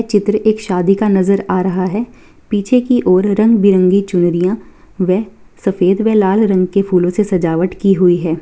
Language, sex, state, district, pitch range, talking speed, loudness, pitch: Hindi, female, Bihar, Purnia, 185-210 Hz, 185 wpm, -14 LUFS, 195 Hz